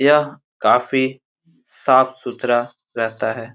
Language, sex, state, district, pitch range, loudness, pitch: Hindi, male, Jharkhand, Jamtara, 120-135 Hz, -19 LUFS, 130 Hz